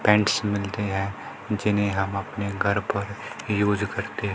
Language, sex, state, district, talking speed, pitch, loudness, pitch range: Hindi, male, Haryana, Rohtak, 140 wpm, 100 Hz, -25 LUFS, 100-105 Hz